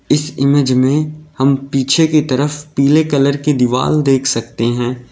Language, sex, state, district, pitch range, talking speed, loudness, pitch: Hindi, male, Uttar Pradesh, Lalitpur, 130-150 Hz, 165 wpm, -14 LUFS, 140 Hz